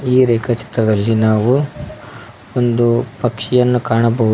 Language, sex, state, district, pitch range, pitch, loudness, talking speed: Kannada, male, Karnataka, Koppal, 115-125 Hz, 120 Hz, -15 LUFS, 95 wpm